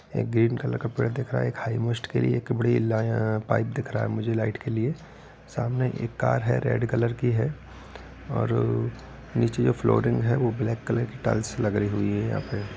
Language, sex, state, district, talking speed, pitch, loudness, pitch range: Hindi, male, Bihar, Gopalganj, 215 wpm, 115 Hz, -26 LUFS, 110-120 Hz